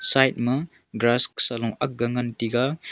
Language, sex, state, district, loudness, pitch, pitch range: Wancho, male, Arunachal Pradesh, Longding, -22 LUFS, 120 Hz, 120-135 Hz